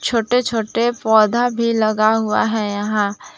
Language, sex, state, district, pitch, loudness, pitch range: Hindi, female, Jharkhand, Palamu, 225 Hz, -17 LUFS, 215-235 Hz